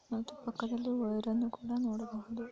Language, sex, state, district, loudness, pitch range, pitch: Kannada, female, Karnataka, Mysore, -36 LUFS, 225-240 Hz, 235 Hz